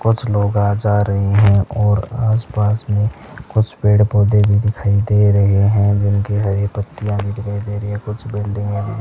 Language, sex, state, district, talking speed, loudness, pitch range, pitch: Hindi, male, Rajasthan, Bikaner, 185 wpm, -16 LUFS, 100-105 Hz, 105 Hz